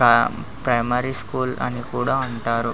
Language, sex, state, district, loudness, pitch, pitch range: Telugu, male, Telangana, Nalgonda, -22 LUFS, 120 Hz, 115-130 Hz